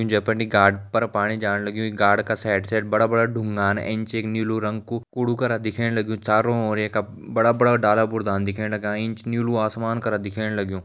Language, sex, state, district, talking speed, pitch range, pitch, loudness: Garhwali, male, Uttarakhand, Uttarkashi, 215 wpm, 105-115 Hz, 110 Hz, -22 LUFS